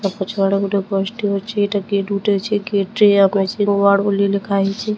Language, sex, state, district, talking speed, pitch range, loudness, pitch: Odia, female, Odisha, Sambalpur, 145 wpm, 195-205 Hz, -17 LUFS, 200 Hz